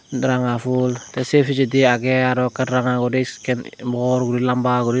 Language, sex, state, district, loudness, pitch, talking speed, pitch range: Chakma, male, Tripura, Unakoti, -19 LUFS, 125 Hz, 180 wpm, 125-130 Hz